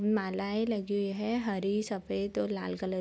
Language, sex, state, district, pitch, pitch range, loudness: Hindi, female, Bihar, Sitamarhi, 200 Hz, 185-210 Hz, -32 LUFS